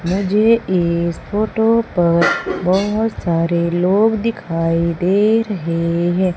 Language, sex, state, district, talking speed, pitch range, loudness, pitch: Hindi, female, Madhya Pradesh, Umaria, 105 wpm, 170-215 Hz, -17 LUFS, 185 Hz